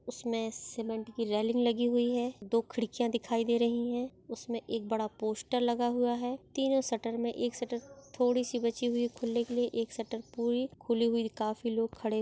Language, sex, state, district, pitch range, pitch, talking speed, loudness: Hindi, female, Maharashtra, Solapur, 230-245 Hz, 235 Hz, 195 wpm, -33 LUFS